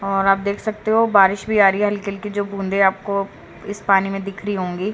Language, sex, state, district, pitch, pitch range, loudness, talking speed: Hindi, female, Haryana, Rohtak, 200 Hz, 195-205 Hz, -19 LUFS, 255 wpm